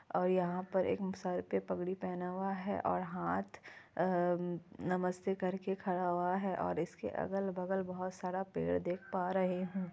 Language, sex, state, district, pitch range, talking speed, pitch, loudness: Hindi, female, Bihar, Kishanganj, 180-190 Hz, 170 wpm, 185 Hz, -37 LUFS